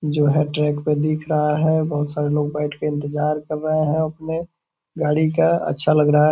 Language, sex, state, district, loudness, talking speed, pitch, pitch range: Hindi, male, Bihar, Purnia, -20 LUFS, 225 wpm, 150 Hz, 150-155 Hz